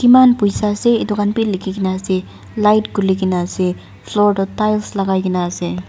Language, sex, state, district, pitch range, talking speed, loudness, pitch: Nagamese, female, Nagaland, Dimapur, 185-210 Hz, 185 wpm, -16 LUFS, 195 Hz